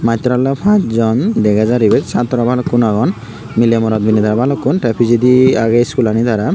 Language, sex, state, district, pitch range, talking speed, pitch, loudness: Chakma, male, Tripura, Unakoti, 110-125 Hz, 165 wpm, 115 Hz, -13 LUFS